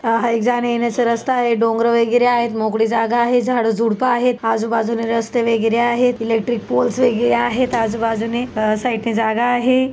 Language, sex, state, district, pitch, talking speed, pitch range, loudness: Marathi, female, Maharashtra, Dhule, 235 Hz, 170 wpm, 225-245 Hz, -17 LUFS